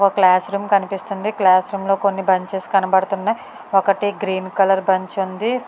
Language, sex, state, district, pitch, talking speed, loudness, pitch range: Telugu, female, Andhra Pradesh, Chittoor, 195 Hz, 160 wpm, -18 LUFS, 190-200 Hz